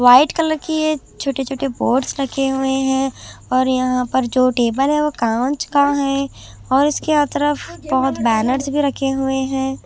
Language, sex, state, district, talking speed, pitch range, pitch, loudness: Hindi, female, Chhattisgarh, Raipur, 180 wpm, 255-285 Hz, 270 Hz, -18 LUFS